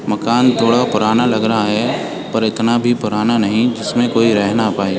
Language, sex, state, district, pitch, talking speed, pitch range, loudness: Hindi, male, Uttar Pradesh, Etah, 115 Hz, 205 wpm, 105-120 Hz, -15 LUFS